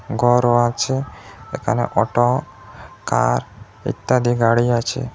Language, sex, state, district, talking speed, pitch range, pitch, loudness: Bengali, male, Assam, Hailakandi, 95 wpm, 115-125 Hz, 120 Hz, -19 LUFS